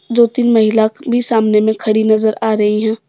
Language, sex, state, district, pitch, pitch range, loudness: Hindi, female, Jharkhand, Deoghar, 220 Hz, 215-235 Hz, -13 LUFS